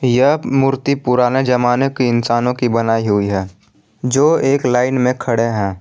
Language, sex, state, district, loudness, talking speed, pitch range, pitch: Hindi, male, Jharkhand, Palamu, -15 LUFS, 165 wpm, 115-130 Hz, 125 Hz